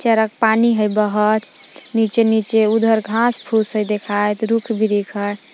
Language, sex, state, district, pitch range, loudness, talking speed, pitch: Magahi, female, Jharkhand, Palamu, 210-225 Hz, -17 LUFS, 140 wpm, 220 Hz